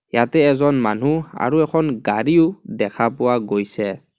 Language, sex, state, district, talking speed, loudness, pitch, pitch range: Assamese, male, Assam, Kamrup Metropolitan, 130 wpm, -19 LUFS, 140 Hz, 110-160 Hz